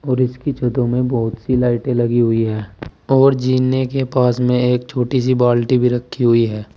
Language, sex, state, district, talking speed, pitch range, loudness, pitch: Hindi, male, Uttar Pradesh, Saharanpur, 205 wpm, 120-130 Hz, -16 LUFS, 125 Hz